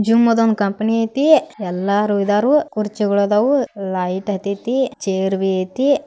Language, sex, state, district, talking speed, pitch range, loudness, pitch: Kannada, female, Karnataka, Belgaum, 130 wpm, 200-250 Hz, -18 LUFS, 210 Hz